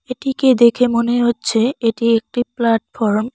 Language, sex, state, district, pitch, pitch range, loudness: Bengali, female, West Bengal, Cooch Behar, 235 Hz, 230-250 Hz, -16 LUFS